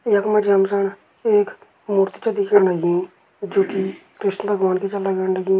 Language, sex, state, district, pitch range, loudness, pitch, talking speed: Garhwali, male, Uttarakhand, Uttarkashi, 190-205 Hz, -20 LUFS, 195 Hz, 180 wpm